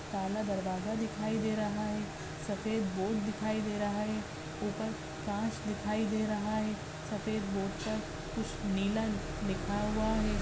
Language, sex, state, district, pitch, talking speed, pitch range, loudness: Hindi, female, Maharashtra, Chandrapur, 210 Hz, 150 wpm, 195-215 Hz, -35 LUFS